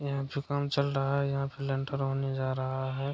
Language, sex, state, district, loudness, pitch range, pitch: Hindi, male, Bihar, Madhepura, -31 LUFS, 135-140 Hz, 135 Hz